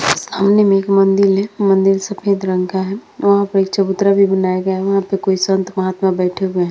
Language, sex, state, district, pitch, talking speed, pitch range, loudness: Hindi, female, Uttar Pradesh, Hamirpur, 195 Hz, 225 wpm, 190-200 Hz, -15 LUFS